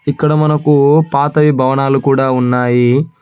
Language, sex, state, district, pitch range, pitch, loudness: Telugu, male, Telangana, Hyderabad, 130-150 Hz, 140 Hz, -12 LUFS